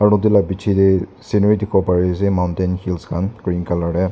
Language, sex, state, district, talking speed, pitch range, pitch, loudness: Nagamese, male, Nagaland, Dimapur, 205 wpm, 90-105 Hz, 95 Hz, -18 LUFS